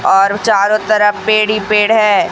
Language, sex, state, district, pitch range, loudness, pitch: Hindi, female, Chhattisgarh, Raipur, 205-215 Hz, -12 LUFS, 210 Hz